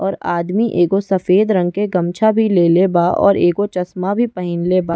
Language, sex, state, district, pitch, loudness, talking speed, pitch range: Bhojpuri, female, Uttar Pradesh, Ghazipur, 185 Hz, -16 LUFS, 195 wpm, 175-200 Hz